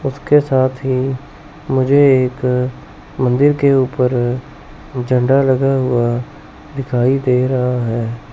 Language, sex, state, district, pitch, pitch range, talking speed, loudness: Hindi, male, Chandigarh, Chandigarh, 130 Hz, 125-135 Hz, 110 wpm, -15 LUFS